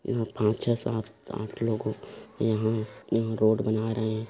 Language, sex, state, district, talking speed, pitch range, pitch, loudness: Hindi, male, Chhattisgarh, Korba, 140 wpm, 110-115 Hz, 110 Hz, -28 LUFS